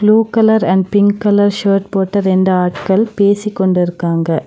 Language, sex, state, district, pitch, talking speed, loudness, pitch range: Tamil, female, Tamil Nadu, Nilgiris, 195 Hz, 145 wpm, -13 LUFS, 185-205 Hz